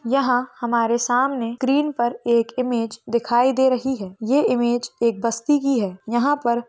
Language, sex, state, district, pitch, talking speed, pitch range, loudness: Hindi, female, Maharashtra, Dhule, 240 Hz, 170 wpm, 235-260 Hz, -21 LUFS